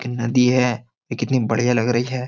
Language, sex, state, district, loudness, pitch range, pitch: Hindi, male, Uttar Pradesh, Jyotiba Phule Nagar, -19 LUFS, 120-125 Hz, 125 Hz